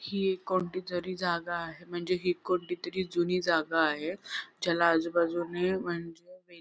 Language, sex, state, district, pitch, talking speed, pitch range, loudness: Marathi, female, Maharashtra, Sindhudurg, 175 Hz, 125 wpm, 170-185 Hz, -31 LUFS